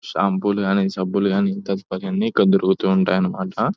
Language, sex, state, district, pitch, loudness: Telugu, male, Telangana, Nalgonda, 100 Hz, -20 LUFS